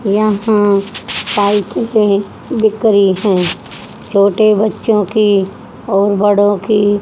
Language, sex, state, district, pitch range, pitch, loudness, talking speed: Hindi, female, Haryana, Jhajjar, 200-215 Hz, 205 Hz, -13 LUFS, 100 wpm